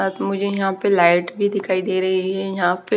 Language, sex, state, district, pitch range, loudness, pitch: Hindi, female, Haryana, Rohtak, 185-195 Hz, -19 LUFS, 190 Hz